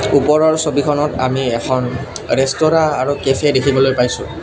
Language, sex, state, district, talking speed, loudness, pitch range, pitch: Assamese, male, Assam, Kamrup Metropolitan, 120 wpm, -15 LUFS, 130-150 Hz, 140 Hz